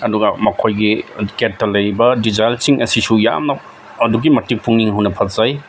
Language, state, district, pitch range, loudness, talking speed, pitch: Manipuri, Manipur, Imphal West, 105-115 Hz, -15 LUFS, 135 wpm, 110 Hz